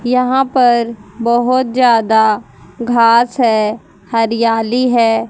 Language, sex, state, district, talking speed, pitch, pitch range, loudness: Hindi, female, Haryana, Rohtak, 90 wpm, 235 Hz, 225-245 Hz, -13 LUFS